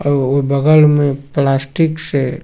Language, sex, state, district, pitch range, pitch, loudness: Maithili, male, Bihar, Supaul, 135-155 Hz, 140 Hz, -14 LUFS